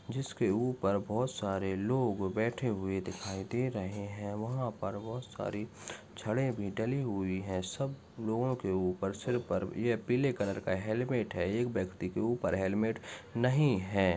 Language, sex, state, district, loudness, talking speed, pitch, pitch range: Hindi, male, Chhattisgarh, Bastar, -34 LUFS, 170 wpm, 110 Hz, 95-120 Hz